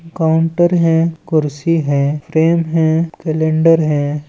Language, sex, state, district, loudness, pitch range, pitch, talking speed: Chhattisgarhi, male, Chhattisgarh, Balrampur, -15 LUFS, 155-165 Hz, 160 Hz, 110 wpm